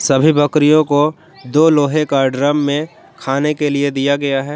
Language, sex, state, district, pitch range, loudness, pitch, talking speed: Hindi, male, Jharkhand, Garhwa, 140-150 Hz, -15 LUFS, 145 Hz, 185 wpm